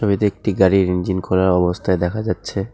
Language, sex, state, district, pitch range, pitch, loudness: Bengali, male, West Bengal, Alipurduar, 90-100 Hz, 95 Hz, -18 LUFS